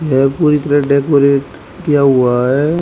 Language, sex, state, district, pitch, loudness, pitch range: Hindi, male, Haryana, Rohtak, 140 Hz, -12 LUFS, 135-150 Hz